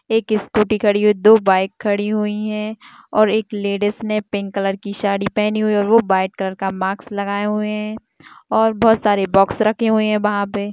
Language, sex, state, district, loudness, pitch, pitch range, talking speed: Hindi, female, Chhattisgarh, Jashpur, -18 LUFS, 210 Hz, 200-215 Hz, 215 wpm